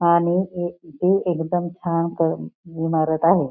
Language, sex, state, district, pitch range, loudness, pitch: Marathi, female, Maharashtra, Pune, 165-175 Hz, -22 LUFS, 170 Hz